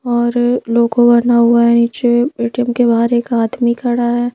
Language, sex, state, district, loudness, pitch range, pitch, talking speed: Hindi, female, Madhya Pradesh, Bhopal, -13 LUFS, 235-240 Hz, 240 Hz, 180 wpm